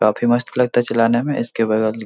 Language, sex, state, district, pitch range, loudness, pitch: Hindi, male, Bihar, Supaul, 110-120 Hz, -18 LUFS, 115 Hz